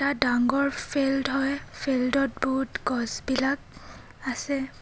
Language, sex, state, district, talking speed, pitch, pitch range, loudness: Assamese, female, Assam, Kamrup Metropolitan, 110 wpm, 270 Hz, 260-275 Hz, -27 LUFS